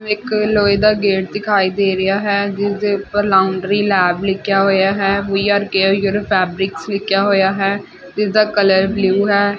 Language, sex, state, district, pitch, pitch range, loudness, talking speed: Punjabi, female, Punjab, Fazilka, 200 Hz, 195-205 Hz, -15 LUFS, 170 wpm